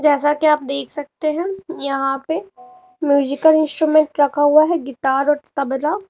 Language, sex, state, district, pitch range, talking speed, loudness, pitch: Hindi, female, Uttar Pradesh, Lalitpur, 280-320 Hz, 155 wpm, -18 LUFS, 295 Hz